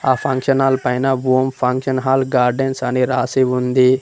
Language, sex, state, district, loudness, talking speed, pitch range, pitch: Telugu, male, Telangana, Mahabubabad, -17 LUFS, 165 wpm, 125-130 Hz, 130 Hz